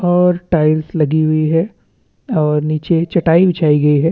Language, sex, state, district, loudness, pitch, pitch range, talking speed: Hindi, male, Chhattisgarh, Bastar, -14 LUFS, 160 Hz, 155-175 Hz, 160 wpm